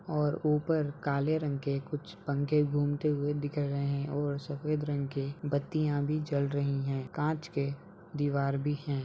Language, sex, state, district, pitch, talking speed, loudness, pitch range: Hindi, male, Uttar Pradesh, Ghazipur, 145 Hz, 170 wpm, -32 LUFS, 140-150 Hz